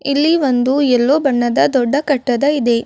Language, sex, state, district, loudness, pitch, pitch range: Kannada, female, Karnataka, Bidar, -14 LUFS, 270 Hz, 245-285 Hz